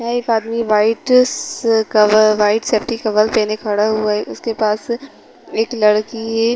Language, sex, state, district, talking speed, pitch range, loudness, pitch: Hindi, female, Chhattisgarh, Rajnandgaon, 155 wpm, 215-230 Hz, -16 LUFS, 220 Hz